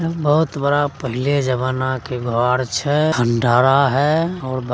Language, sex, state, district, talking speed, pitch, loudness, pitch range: Angika, male, Bihar, Begusarai, 125 wpm, 130 Hz, -18 LUFS, 125-145 Hz